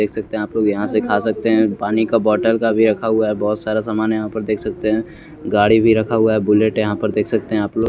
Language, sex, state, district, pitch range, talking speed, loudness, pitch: Hindi, male, Chandigarh, Chandigarh, 105-110 Hz, 305 wpm, -17 LUFS, 110 Hz